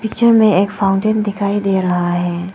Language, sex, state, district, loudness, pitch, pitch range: Hindi, female, Arunachal Pradesh, Papum Pare, -15 LUFS, 200 Hz, 185-215 Hz